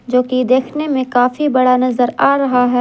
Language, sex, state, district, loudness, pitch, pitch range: Hindi, female, Jharkhand, Garhwa, -14 LUFS, 255 Hz, 250-270 Hz